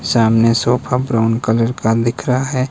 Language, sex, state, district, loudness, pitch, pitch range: Hindi, male, Himachal Pradesh, Shimla, -15 LUFS, 115 Hz, 115-125 Hz